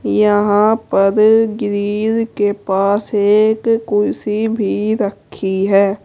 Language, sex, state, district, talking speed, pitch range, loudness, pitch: Hindi, female, Uttar Pradesh, Saharanpur, 100 wpm, 205-220 Hz, -15 LUFS, 210 Hz